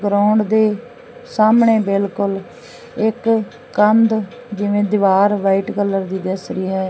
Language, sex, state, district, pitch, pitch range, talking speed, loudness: Punjabi, female, Punjab, Fazilka, 205 Hz, 195-220 Hz, 120 wpm, -16 LUFS